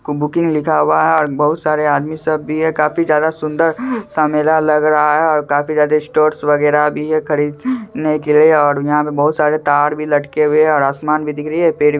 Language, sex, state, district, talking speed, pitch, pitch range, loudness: Hindi, male, Bihar, Supaul, 230 wpm, 150 Hz, 150-155 Hz, -14 LUFS